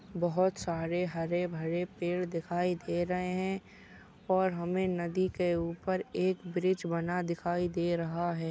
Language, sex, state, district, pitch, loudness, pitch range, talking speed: Hindi, female, Maharashtra, Solapur, 175 Hz, -33 LUFS, 170-185 Hz, 150 wpm